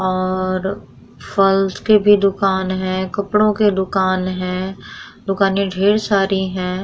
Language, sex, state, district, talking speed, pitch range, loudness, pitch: Hindi, female, Bihar, Vaishali, 125 wpm, 185-200 Hz, -17 LUFS, 195 Hz